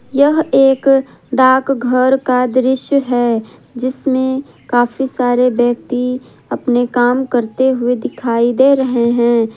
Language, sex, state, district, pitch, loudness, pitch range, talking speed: Hindi, female, Jharkhand, Ranchi, 255 Hz, -14 LUFS, 245-265 Hz, 115 wpm